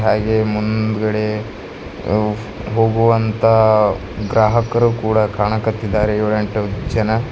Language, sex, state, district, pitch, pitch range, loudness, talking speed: Kannada, male, Karnataka, Bidar, 110 Hz, 105-110 Hz, -17 LUFS, 65 wpm